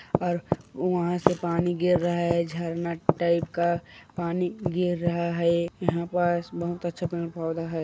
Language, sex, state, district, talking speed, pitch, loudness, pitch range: Chhattisgarhi, male, Chhattisgarh, Korba, 160 wpm, 170 Hz, -27 LUFS, 170-175 Hz